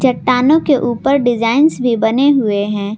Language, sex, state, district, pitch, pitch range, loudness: Hindi, female, Jharkhand, Garhwa, 250 Hz, 225-275 Hz, -13 LUFS